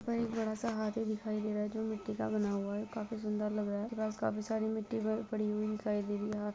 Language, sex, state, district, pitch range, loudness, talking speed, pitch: Hindi, female, Uttar Pradesh, Ghazipur, 210-220 Hz, -36 LUFS, 90 wpm, 215 Hz